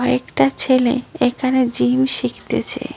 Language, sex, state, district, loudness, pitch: Bengali, female, West Bengal, Cooch Behar, -18 LUFS, 245 Hz